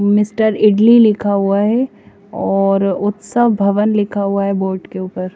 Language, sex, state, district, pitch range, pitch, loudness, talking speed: Hindi, female, Bihar, Katihar, 195-215 Hz, 205 Hz, -15 LUFS, 155 wpm